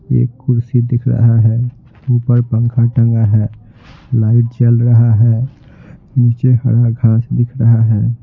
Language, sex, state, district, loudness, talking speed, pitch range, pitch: Hindi, male, Bihar, Patna, -13 LUFS, 140 wpm, 115-125 Hz, 120 Hz